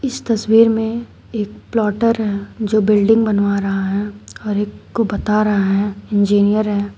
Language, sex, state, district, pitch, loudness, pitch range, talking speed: Hindi, female, Uttar Pradesh, Shamli, 210 Hz, -17 LUFS, 205-225 Hz, 165 wpm